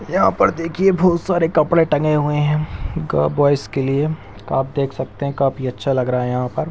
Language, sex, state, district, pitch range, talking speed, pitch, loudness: Hindi, male, Bihar, Darbhanga, 135-160 Hz, 215 wpm, 145 Hz, -18 LUFS